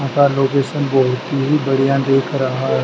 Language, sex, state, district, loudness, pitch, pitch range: Hindi, male, Madhya Pradesh, Dhar, -16 LUFS, 135 Hz, 135-140 Hz